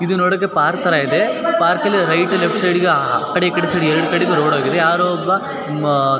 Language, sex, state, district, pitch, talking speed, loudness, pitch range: Kannada, male, Karnataka, Shimoga, 180 Hz, 215 wpm, -16 LUFS, 155-185 Hz